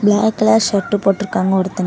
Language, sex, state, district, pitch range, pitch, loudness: Tamil, female, Tamil Nadu, Namakkal, 190-215 Hz, 205 Hz, -15 LUFS